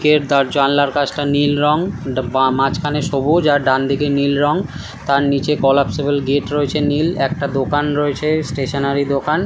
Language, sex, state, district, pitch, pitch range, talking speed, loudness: Bengali, male, West Bengal, Kolkata, 145 Hz, 140-150 Hz, 160 wpm, -17 LUFS